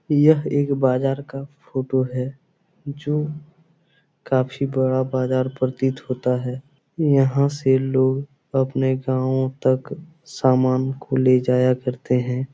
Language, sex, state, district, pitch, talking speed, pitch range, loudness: Hindi, male, Bihar, Supaul, 135 Hz, 120 wpm, 130-145 Hz, -21 LUFS